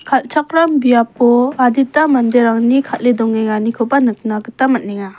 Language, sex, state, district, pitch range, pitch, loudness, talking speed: Garo, female, Meghalaya, West Garo Hills, 225-265 Hz, 245 Hz, -14 LUFS, 105 wpm